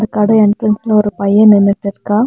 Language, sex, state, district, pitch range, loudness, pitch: Tamil, female, Tamil Nadu, Nilgiris, 205-215 Hz, -11 LUFS, 210 Hz